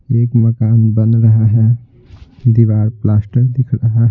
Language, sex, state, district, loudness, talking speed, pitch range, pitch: Hindi, male, Bihar, Patna, -13 LUFS, 130 wpm, 110-120 Hz, 115 Hz